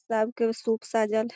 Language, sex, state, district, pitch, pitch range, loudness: Magahi, female, Bihar, Gaya, 225 Hz, 220-230 Hz, -27 LUFS